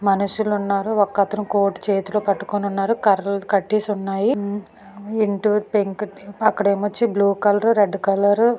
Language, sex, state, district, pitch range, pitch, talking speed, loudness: Telugu, female, Andhra Pradesh, Anantapur, 200-210 Hz, 205 Hz, 125 wpm, -20 LUFS